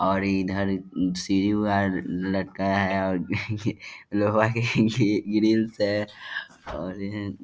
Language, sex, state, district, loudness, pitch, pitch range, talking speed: Hindi, male, Bihar, Vaishali, -25 LUFS, 100 Hz, 95-105 Hz, 115 wpm